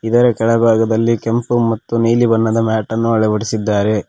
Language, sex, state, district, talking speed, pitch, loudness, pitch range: Kannada, male, Karnataka, Koppal, 115 wpm, 115 Hz, -15 LUFS, 110-115 Hz